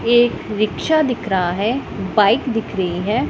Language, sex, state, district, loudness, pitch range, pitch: Hindi, female, Punjab, Pathankot, -18 LUFS, 195-240 Hz, 215 Hz